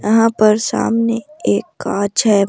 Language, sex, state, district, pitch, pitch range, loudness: Hindi, female, Rajasthan, Jaipur, 225 Hz, 210-230 Hz, -16 LUFS